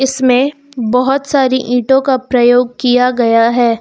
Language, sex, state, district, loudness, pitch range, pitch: Hindi, female, Uttar Pradesh, Lucknow, -12 LUFS, 245-265 Hz, 250 Hz